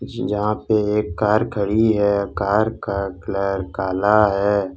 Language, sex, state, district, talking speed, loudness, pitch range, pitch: Hindi, male, Jharkhand, Ranchi, 140 wpm, -20 LUFS, 100-105 Hz, 105 Hz